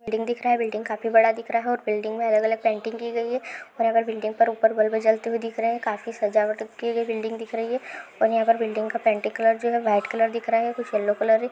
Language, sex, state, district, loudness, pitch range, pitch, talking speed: Hindi, female, Rajasthan, Churu, -24 LUFS, 220-230 Hz, 225 Hz, 265 wpm